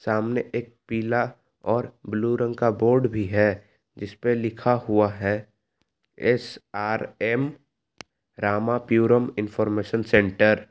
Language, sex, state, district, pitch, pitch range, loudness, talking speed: Hindi, male, Jharkhand, Palamu, 115 Hz, 105-120 Hz, -24 LUFS, 110 wpm